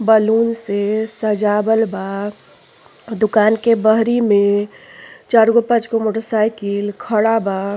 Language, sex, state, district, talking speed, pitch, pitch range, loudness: Bhojpuri, female, Uttar Pradesh, Ghazipur, 115 wpm, 220 Hz, 210-225 Hz, -16 LUFS